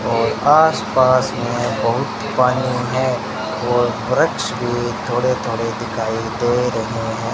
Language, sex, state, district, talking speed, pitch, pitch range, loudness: Hindi, male, Rajasthan, Bikaner, 120 wpm, 120 Hz, 115-125 Hz, -18 LUFS